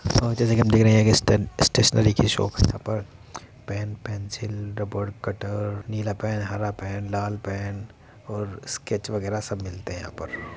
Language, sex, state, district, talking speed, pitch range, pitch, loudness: Hindi, male, Uttar Pradesh, Muzaffarnagar, 180 wpm, 100-110 Hz, 105 Hz, -24 LUFS